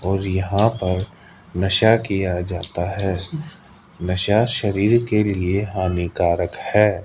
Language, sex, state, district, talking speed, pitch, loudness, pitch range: Hindi, male, Rajasthan, Jaipur, 110 wpm, 95 Hz, -20 LUFS, 90-105 Hz